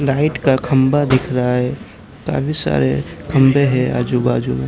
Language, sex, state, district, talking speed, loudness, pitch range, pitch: Hindi, male, Gujarat, Gandhinagar, 165 wpm, -16 LUFS, 120-135 Hz, 130 Hz